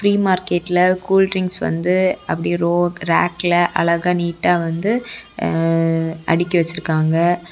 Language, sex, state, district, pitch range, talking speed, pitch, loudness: Tamil, female, Tamil Nadu, Kanyakumari, 170-185 Hz, 95 wpm, 175 Hz, -17 LUFS